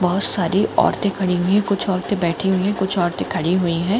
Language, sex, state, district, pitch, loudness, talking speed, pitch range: Hindi, female, Jharkhand, Jamtara, 190 Hz, -18 LUFS, 210 wpm, 175-200 Hz